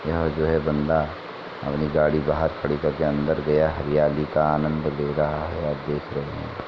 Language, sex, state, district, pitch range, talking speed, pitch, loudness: Hindi, male, Uttar Pradesh, Etah, 75-80 Hz, 205 wpm, 75 Hz, -24 LUFS